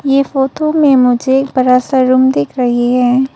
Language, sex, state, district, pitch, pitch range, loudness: Hindi, female, Arunachal Pradesh, Papum Pare, 260 Hz, 250-270 Hz, -12 LUFS